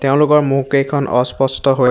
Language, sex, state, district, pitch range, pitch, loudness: Assamese, male, Assam, Hailakandi, 135-140 Hz, 135 Hz, -15 LUFS